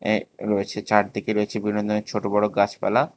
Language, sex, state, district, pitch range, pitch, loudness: Bengali, male, Tripura, West Tripura, 100-105 Hz, 105 Hz, -23 LUFS